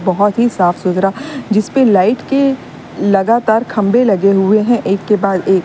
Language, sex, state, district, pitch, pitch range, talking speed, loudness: Hindi, female, Uttar Pradesh, Lalitpur, 210 Hz, 195-240 Hz, 160 wpm, -13 LUFS